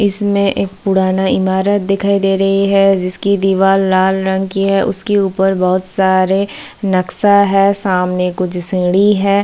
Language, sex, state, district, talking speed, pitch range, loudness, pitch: Hindi, female, Bihar, Kishanganj, 150 wpm, 190-200 Hz, -14 LUFS, 195 Hz